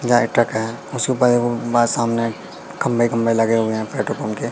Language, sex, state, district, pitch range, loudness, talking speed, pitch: Hindi, male, Madhya Pradesh, Katni, 115-120 Hz, -19 LUFS, 265 wpm, 115 Hz